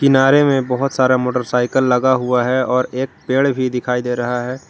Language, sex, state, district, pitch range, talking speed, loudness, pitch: Hindi, male, Jharkhand, Garhwa, 125-130 Hz, 205 wpm, -16 LUFS, 130 Hz